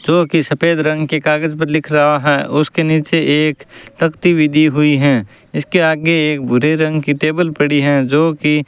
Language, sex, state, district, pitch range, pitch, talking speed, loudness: Hindi, male, Rajasthan, Bikaner, 145-160 Hz, 155 Hz, 210 wpm, -14 LUFS